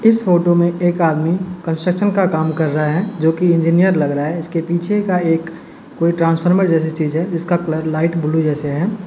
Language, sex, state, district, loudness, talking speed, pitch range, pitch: Hindi, male, Uttar Pradesh, Hamirpur, -16 LUFS, 205 wpm, 160-180 Hz, 170 Hz